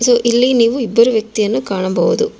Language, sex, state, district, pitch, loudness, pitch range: Kannada, female, Karnataka, Bangalore, 235 Hz, -14 LUFS, 220-250 Hz